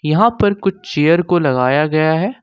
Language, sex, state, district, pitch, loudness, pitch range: Hindi, male, Jharkhand, Ranchi, 165 Hz, -15 LUFS, 150-195 Hz